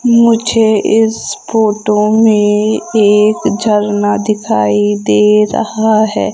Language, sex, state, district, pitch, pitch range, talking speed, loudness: Hindi, female, Madhya Pradesh, Umaria, 215 Hz, 205-220 Hz, 95 wpm, -11 LUFS